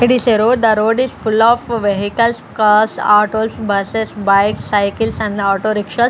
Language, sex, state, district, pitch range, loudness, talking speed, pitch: English, female, Punjab, Fazilka, 205-230 Hz, -14 LUFS, 165 wpm, 220 Hz